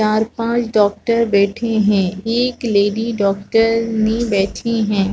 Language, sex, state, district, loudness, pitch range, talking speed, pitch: Hindi, female, Chhattisgarh, Rajnandgaon, -17 LUFS, 200-230 Hz, 105 wpm, 220 Hz